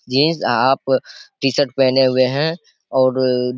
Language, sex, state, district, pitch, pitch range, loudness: Hindi, male, Bihar, Saharsa, 130 Hz, 130-140 Hz, -17 LUFS